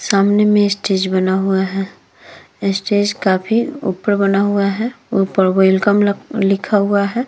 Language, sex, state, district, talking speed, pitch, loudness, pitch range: Hindi, female, Uttar Pradesh, Hamirpur, 150 wpm, 200 Hz, -16 LUFS, 190-205 Hz